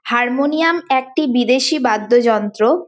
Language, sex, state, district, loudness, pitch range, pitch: Bengali, female, West Bengal, Paschim Medinipur, -15 LUFS, 240-310 Hz, 255 Hz